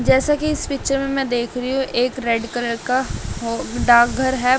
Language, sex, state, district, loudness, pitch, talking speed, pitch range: Hindi, female, Delhi, New Delhi, -20 LUFS, 255 Hz, 210 wpm, 240-270 Hz